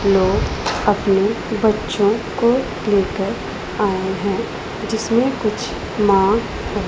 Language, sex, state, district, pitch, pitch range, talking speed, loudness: Hindi, female, Punjab, Pathankot, 210 Hz, 195-220 Hz, 95 wpm, -19 LUFS